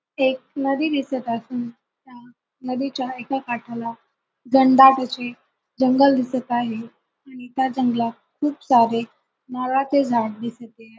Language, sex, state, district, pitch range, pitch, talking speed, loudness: Marathi, female, Maharashtra, Sindhudurg, 235-265 Hz, 255 Hz, 115 wpm, -21 LUFS